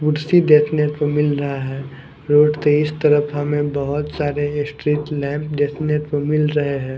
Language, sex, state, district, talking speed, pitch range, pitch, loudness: Hindi, male, Chandigarh, Chandigarh, 170 wpm, 145-150 Hz, 150 Hz, -18 LUFS